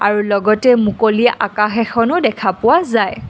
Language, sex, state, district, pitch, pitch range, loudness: Assamese, female, Assam, Kamrup Metropolitan, 215 Hz, 205-230 Hz, -14 LUFS